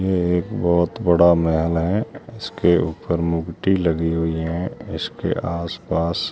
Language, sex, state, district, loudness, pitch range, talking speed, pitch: Hindi, male, Rajasthan, Jaisalmer, -20 LUFS, 85-95 Hz, 135 wpm, 85 Hz